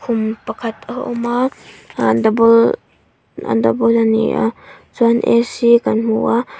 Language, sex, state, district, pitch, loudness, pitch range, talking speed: Mizo, female, Mizoram, Aizawl, 230 Hz, -16 LUFS, 225-235 Hz, 125 wpm